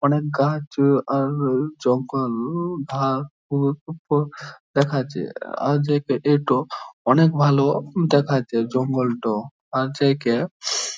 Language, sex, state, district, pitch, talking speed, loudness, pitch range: Bengali, male, West Bengal, Jhargram, 140 Hz, 95 wpm, -22 LUFS, 130-145 Hz